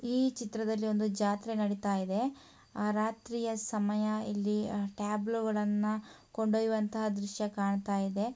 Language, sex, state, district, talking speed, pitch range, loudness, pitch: Kannada, female, Karnataka, Mysore, 95 wpm, 205-220 Hz, -33 LUFS, 215 Hz